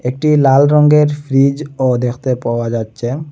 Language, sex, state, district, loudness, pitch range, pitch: Bengali, male, Assam, Hailakandi, -13 LUFS, 125-150 Hz, 135 Hz